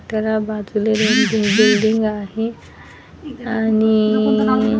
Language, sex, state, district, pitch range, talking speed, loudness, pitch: Marathi, female, Maharashtra, Washim, 215-225 Hz, 85 wpm, -17 LUFS, 220 Hz